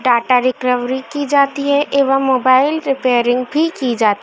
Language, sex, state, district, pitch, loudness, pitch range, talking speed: Hindi, female, Madhya Pradesh, Dhar, 260 Hz, -15 LUFS, 250-280 Hz, 155 wpm